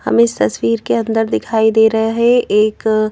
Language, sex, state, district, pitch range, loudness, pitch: Hindi, female, Madhya Pradesh, Bhopal, 215-225 Hz, -14 LUFS, 220 Hz